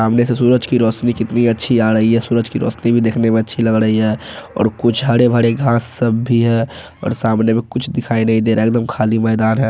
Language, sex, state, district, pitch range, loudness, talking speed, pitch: Hindi, male, Bihar, Araria, 110-120 Hz, -15 LUFS, 245 wpm, 115 Hz